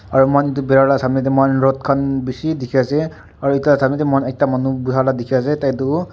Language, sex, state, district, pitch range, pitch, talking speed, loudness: Nagamese, male, Nagaland, Dimapur, 130-140 Hz, 135 Hz, 225 wpm, -17 LUFS